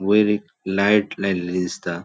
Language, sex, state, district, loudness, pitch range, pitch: Konkani, male, Goa, North and South Goa, -21 LUFS, 90-105 Hz, 100 Hz